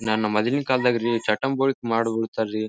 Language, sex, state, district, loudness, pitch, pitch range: Kannada, male, Karnataka, Bijapur, -23 LUFS, 115 Hz, 110-130 Hz